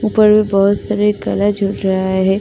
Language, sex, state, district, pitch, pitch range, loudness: Hindi, female, Uttar Pradesh, Muzaffarnagar, 200 Hz, 195-210 Hz, -14 LUFS